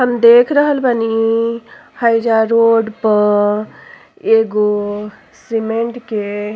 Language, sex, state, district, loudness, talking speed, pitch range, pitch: Bhojpuri, female, Uttar Pradesh, Ghazipur, -14 LUFS, 100 wpm, 210-230 Hz, 225 Hz